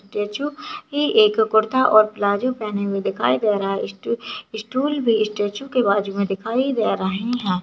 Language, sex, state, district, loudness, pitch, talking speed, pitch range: Hindi, female, Chhattisgarh, Balrampur, -20 LUFS, 215 Hz, 180 wpm, 200-255 Hz